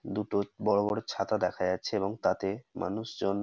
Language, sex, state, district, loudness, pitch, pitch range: Bengali, male, West Bengal, North 24 Parganas, -31 LUFS, 100 Hz, 95-105 Hz